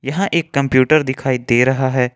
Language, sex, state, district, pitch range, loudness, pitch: Hindi, male, Jharkhand, Ranchi, 130-140 Hz, -16 LUFS, 130 Hz